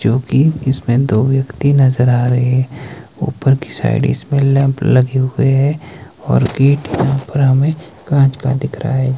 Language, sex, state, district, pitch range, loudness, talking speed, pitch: Hindi, male, Himachal Pradesh, Shimla, 130-140 Hz, -14 LUFS, 155 wpm, 135 Hz